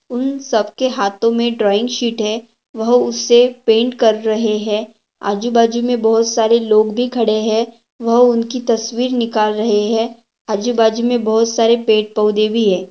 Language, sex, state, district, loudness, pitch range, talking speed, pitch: Hindi, female, Maharashtra, Pune, -15 LUFS, 220-240 Hz, 165 wpm, 230 Hz